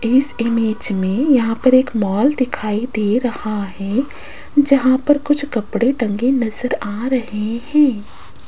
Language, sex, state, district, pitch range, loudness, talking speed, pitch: Hindi, female, Rajasthan, Jaipur, 215-265 Hz, -17 LUFS, 140 wpm, 240 Hz